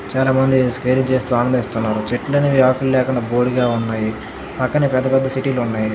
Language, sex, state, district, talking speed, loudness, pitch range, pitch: Telugu, male, Karnataka, Dharwad, 160 wpm, -17 LUFS, 120-130 Hz, 130 Hz